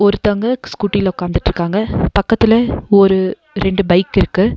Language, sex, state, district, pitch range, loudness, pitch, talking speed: Tamil, female, Tamil Nadu, Nilgiris, 190-215 Hz, -15 LUFS, 200 Hz, 105 wpm